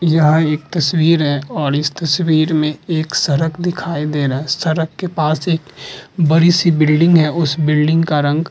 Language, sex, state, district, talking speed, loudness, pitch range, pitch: Hindi, male, Uttar Pradesh, Muzaffarnagar, 185 wpm, -15 LUFS, 150-165 Hz, 160 Hz